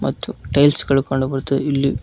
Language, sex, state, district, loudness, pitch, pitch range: Kannada, male, Karnataka, Koppal, -18 LUFS, 135 Hz, 135-140 Hz